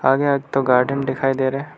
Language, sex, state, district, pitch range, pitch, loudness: Hindi, male, Arunachal Pradesh, Lower Dibang Valley, 135-140 Hz, 135 Hz, -19 LUFS